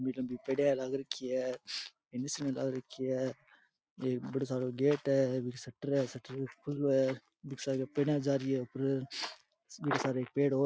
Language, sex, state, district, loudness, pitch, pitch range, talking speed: Rajasthani, male, Rajasthan, Churu, -35 LUFS, 135 Hz, 130-140 Hz, 185 wpm